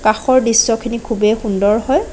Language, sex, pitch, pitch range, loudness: Assamese, female, 225 Hz, 215-235 Hz, -15 LUFS